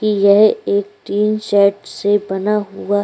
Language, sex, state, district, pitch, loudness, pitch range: Hindi, female, Goa, North and South Goa, 205 Hz, -16 LUFS, 200-210 Hz